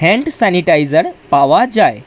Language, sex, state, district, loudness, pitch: Bengali, male, West Bengal, Dakshin Dinajpur, -12 LUFS, 215 Hz